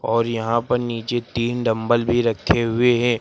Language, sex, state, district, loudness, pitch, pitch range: Hindi, male, Uttar Pradesh, Lucknow, -20 LUFS, 120 Hz, 115-120 Hz